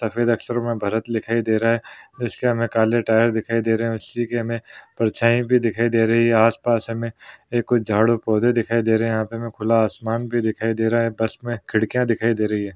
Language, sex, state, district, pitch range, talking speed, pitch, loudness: Hindi, male, Chhattisgarh, Rajnandgaon, 110-115 Hz, 230 wpm, 115 Hz, -21 LUFS